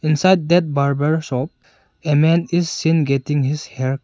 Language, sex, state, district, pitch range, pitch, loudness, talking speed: English, male, Arunachal Pradesh, Longding, 140-165 Hz, 155 Hz, -18 LUFS, 180 wpm